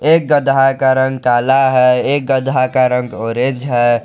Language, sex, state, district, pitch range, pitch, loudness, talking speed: Hindi, male, Jharkhand, Garhwa, 125-135 Hz, 130 Hz, -13 LUFS, 175 wpm